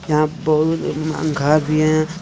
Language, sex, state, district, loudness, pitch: Hindi, male, Jharkhand, Deoghar, -18 LUFS, 155 Hz